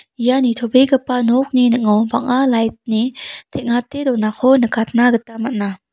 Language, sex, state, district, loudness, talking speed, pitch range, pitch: Garo, female, Meghalaya, South Garo Hills, -16 LUFS, 120 wpm, 230-255 Hz, 240 Hz